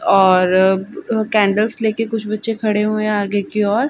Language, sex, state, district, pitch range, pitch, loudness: Hindi, female, Uttar Pradesh, Ghazipur, 200-220 Hz, 215 Hz, -17 LUFS